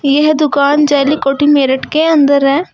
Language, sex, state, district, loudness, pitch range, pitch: Hindi, female, Uttar Pradesh, Shamli, -11 LUFS, 280-300 Hz, 285 Hz